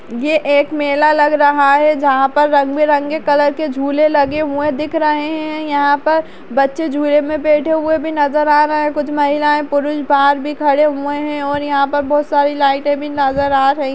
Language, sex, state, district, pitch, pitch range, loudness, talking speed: Kumaoni, female, Uttarakhand, Uttarkashi, 295 Hz, 285-300 Hz, -14 LUFS, 210 wpm